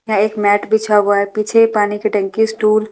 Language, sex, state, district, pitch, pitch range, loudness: Hindi, female, Delhi, New Delhi, 215 Hz, 205-220 Hz, -15 LUFS